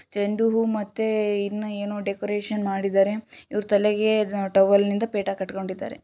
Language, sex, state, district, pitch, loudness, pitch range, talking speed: Kannada, female, Karnataka, Shimoga, 205 Hz, -24 LUFS, 200-215 Hz, 120 wpm